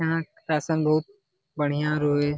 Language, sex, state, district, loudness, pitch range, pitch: Hindi, male, Bihar, Jamui, -25 LUFS, 145-160 Hz, 155 Hz